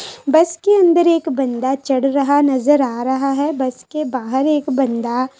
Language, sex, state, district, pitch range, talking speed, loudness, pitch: Hindi, female, Uttar Pradesh, Jalaun, 260-300 Hz, 190 wpm, -16 LUFS, 275 Hz